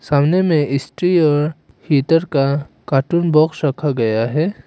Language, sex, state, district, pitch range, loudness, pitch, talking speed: Hindi, male, Arunachal Pradesh, Papum Pare, 140-165 Hz, -17 LUFS, 150 Hz, 140 wpm